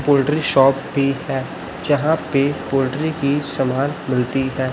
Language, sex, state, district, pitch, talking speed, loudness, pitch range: Hindi, male, Chhattisgarh, Raipur, 140 Hz, 140 wpm, -19 LUFS, 135-145 Hz